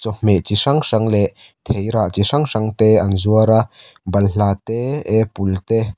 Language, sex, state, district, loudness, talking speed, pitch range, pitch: Mizo, male, Mizoram, Aizawl, -17 LUFS, 180 wpm, 100-110 Hz, 110 Hz